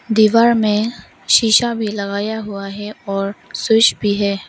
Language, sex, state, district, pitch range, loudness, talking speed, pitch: Hindi, female, Arunachal Pradesh, Longding, 200-225 Hz, -16 LUFS, 145 wpm, 210 Hz